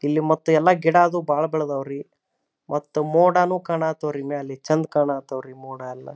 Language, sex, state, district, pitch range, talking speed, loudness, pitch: Kannada, male, Karnataka, Dharwad, 140-160 Hz, 155 wpm, -21 LUFS, 150 Hz